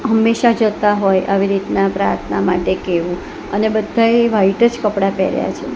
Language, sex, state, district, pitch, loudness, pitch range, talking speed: Gujarati, female, Gujarat, Gandhinagar, 210 Hz, -16 LUFS, 195-230 Hz, 155 wpm